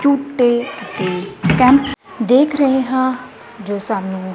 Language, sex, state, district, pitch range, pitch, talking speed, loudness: Punjabi, female, Punjab, Kapurthala, 205-275 Hz, 255 Hz, 125 wpm, -16 LUFS